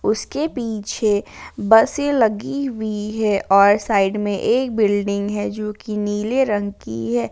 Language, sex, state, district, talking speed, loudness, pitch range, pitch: Hindi, female, Jharkhand, Palamu, 140 wpm, -19 LUFS, 205-225 Hz, 210 Hz